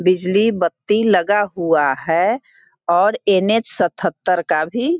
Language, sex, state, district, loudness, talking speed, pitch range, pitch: Hindi, female, Bihar, Sitamarhi, -17 LUFS, 145 wpm, 170-215 Hz, 190 Hz